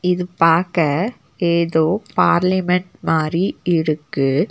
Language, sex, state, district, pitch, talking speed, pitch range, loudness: Tamil, female, Tamil Nadu, Nilgiris, 170 Hz, 80 wpm, 160-180 Hz, -18 LUFS